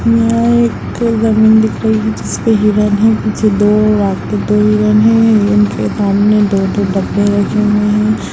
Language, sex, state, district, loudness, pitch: Hindi, female, Bihar, Gaya, -12 LUFS, 205 Hz